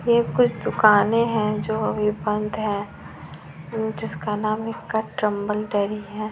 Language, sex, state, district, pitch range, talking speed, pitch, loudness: Hindi, female, Bihar, Gopalganj, 210-220 Hz, 105 wpm, 210 Hz, -23 LUFS